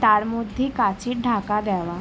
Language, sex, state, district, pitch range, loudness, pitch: Bengali, female, West Bengal, Jalpaiguri, 205-240 Hz, -23 LUFS, 220 Hz